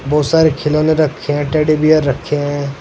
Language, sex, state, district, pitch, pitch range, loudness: Hindi, male, Uttar Pradesh, Saharanpur, 150 Hz, 145-155 Hz, -14 LUFS